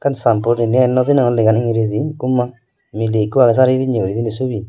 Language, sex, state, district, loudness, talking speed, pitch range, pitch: Chakma, male, Tripura, Dhalai, -16 LUFS, 230 wpm, 110-130 Hz, 120 Hz